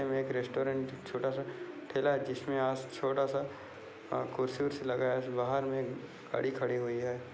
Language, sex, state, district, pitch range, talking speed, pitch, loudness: Hindi, male, Maharashtra, Dhule, 125-135 Hz, 180 wpm, 135 Hz, -35 LUFS